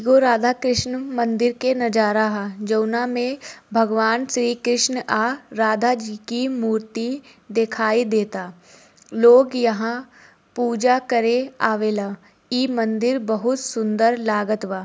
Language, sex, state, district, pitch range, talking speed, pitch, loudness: Bhojpuri, female, Bihar, Gopalganj, 220-250 Hz, 120 wpm, 235 Hz, -20 LUFS